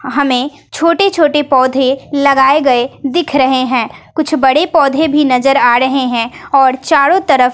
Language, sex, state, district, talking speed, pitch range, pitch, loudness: Hindi, female, Bihar, West Champaran, 160 wpm, 260-300 Hz, 270 Hz, -11 LUFS